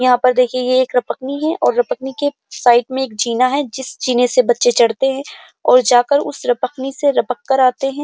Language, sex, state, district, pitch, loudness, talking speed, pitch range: Hindi, female, Uttar Pradesh, Jyotiba Phule Nagar, 255 Hz, -16 LUFS, 210 wpm, 245-270 Hz